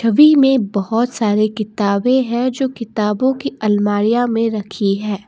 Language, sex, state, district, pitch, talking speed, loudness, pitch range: Hindi, female, Assam, Kamrup Metropolitan, 225 Hz, 135 wpm, -16 LUFS, 205-255 Hz